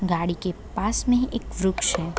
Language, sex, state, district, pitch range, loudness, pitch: Hindi, female, Bihar, Gopalganj, 175-235 Hz, -25 LUFS, 190 Hz